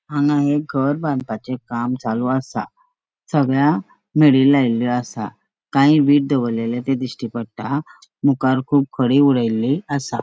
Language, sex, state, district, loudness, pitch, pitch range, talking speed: Konkani, female, Goa, North and South Goa, -19 LUFS, 135 Hz, 120-145 Hz, 130 wpm